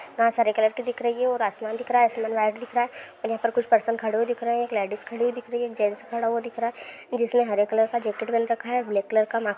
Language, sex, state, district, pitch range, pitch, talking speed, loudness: Hindi, female, Andhra Pradesh, Guntur, 220-240 Hz, 230 Hz, 320 wpm, -25 LUFS